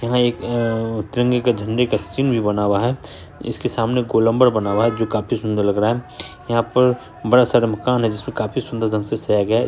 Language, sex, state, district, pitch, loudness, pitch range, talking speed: Hindi, male, Bihar, Saharsa, 115 Hz, -19 LUFS, 110-125 Hz, 250 wpm